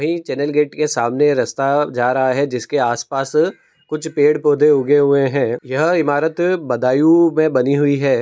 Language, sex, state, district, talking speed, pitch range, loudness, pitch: Hindi, male, Uttar Pradesh, Budaun, 170 wpm, 135-155 Hz, -16 LUFS, 145 Hz